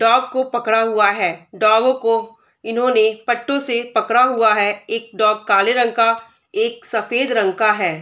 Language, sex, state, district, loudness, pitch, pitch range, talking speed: Hindi, female, Bihar, Darbhanga, -17 LUFS, 230 Hz, 215-240 Hz, 195 wpm